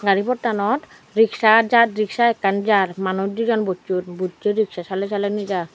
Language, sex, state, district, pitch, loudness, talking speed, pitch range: Chakma, female, Tripura, Dhalai, 205 Hz, -20 LUFS, 155 wpm, 190-225 Hz